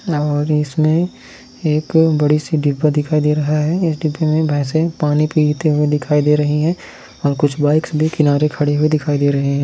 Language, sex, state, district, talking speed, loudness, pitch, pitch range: Hindi, male, Bihar, Sitamarhi, 200 wpm, -16 LUFS, 150 Hz, 150-155 Hz